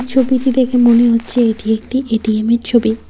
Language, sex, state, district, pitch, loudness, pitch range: Bengali, female, West Bengal, Cooch Behar, 235 Hz, -14 LUFS, 225-255 Hz